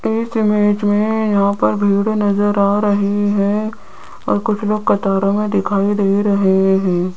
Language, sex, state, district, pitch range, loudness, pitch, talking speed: Hindi, female, Rajasthan, Jaipur, 200-210 Hz, -16 LUFS, 205 Hz, 160 wpm